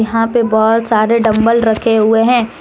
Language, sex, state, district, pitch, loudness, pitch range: Hindi, female, Jharkhand, Deoghar, 225 Hz, -12 LUFS, 220-230 Hz